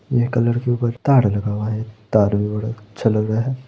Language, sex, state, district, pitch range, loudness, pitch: Hindi, male, Bihar, Supaul, 105-120 Hz, -20 LUFS, 110 Hz